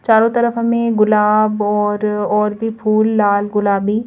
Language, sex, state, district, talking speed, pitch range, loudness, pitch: Hindi, female, Madhya Pradesh, Bhopal, 145 wpm, 210-225 Hz, -15 LUFS, 215 Hz